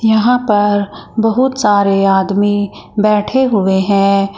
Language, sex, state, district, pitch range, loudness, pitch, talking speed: Hindi, female, Uttar Pradesh, Shamli, 195-220 Hz, -13 LUFS, 205 Hz, 110 wpm